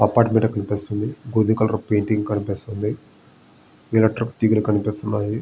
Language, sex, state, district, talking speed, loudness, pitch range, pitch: Telugu, male, Andhra Pradesh, Visakhapatnam, 75 wpm, -21 LUFS, 105-110 Hz, 105 Hz